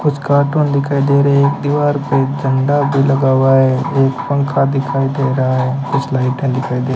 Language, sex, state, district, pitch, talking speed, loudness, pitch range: Hindi, male, Rajasthan, Bikaner, 140 Hz, 205 wpm, -14 LUFS, 135-140 Hz